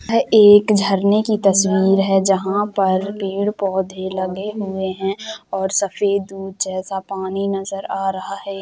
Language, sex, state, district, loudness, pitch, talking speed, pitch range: Hindi, female, Jharkhand, Jamtara, -18 LUFS, 195 Hz, 145 wpm, 190-200 Hz